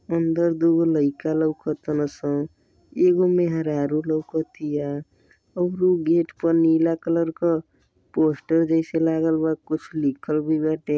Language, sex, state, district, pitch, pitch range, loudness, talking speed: Bhojpuri, male, Uttar Pradesh, Deoria, 160 Hz, 155-165 Hz, -22 LUFS, 130 wpm